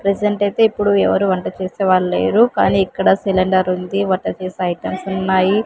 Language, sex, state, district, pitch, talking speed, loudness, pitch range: Telugu, female, Andhra Pradesh, Sri Satya Sai, 190 Hz, 160 wpm, -17 LUFS, 185-200 Hz